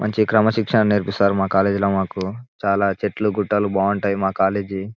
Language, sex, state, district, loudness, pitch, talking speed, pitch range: Telugu, male, Telangana, Nalgonda, -20 LUFS, 100 Hz, 170 wpm, 95-105 Hz